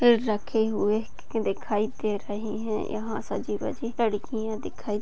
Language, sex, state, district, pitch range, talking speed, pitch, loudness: Hindi, female, Chhattisgarh, Sarguja, 210-230 Hz, 145 wpm, 220 Hz, -28 LUFS